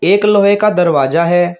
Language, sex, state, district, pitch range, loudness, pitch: Hindi, male, Uttar Pradesh, Shamli, 170-205 Hz, -11 LUFS, 175 Hz